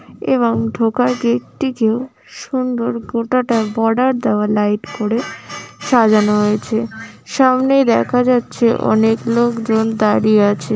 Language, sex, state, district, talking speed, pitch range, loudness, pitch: Bengali, female, West Bengal, Malda, 105 wpm, 220-245 Hz, -16 LUFS, 230 Hz